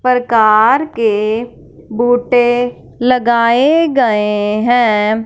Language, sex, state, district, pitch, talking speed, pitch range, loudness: Hindi, female, Punjab, Fazilka, 240 Hz, 70 wpm, 220-245 Hz, -12 LUFS